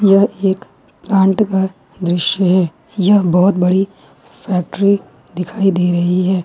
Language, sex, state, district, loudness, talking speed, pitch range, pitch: Hindi, female, Jharkhand, Ranchi, -15 LUFS, 120 wpm, 180-195 Hz, 190 Hz